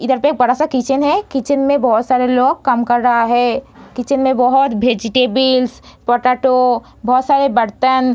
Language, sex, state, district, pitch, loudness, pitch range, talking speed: Hindi, female, Bihar, Darbhanga, 255 Hz, -14 LUFS, 245-265 Hz, 175 wpm